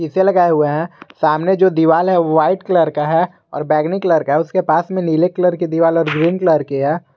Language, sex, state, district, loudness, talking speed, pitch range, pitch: Hindi, male, Jharkhand, Garhwa, -15 LUFS, 225 wpm, 155-180 Hz, 165 Hz